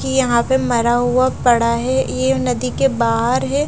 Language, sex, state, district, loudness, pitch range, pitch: Hindi, female, Bihar, Katihar, -16 LUFS, 230-255 Hz, 240 Hz